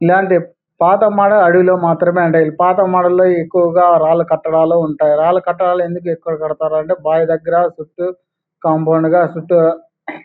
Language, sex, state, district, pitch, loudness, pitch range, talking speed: Telugu, male, Andhra Pradesh, Anantapur, 170 Hz, -13 LUFS, 160-180 Hz, 130 wpm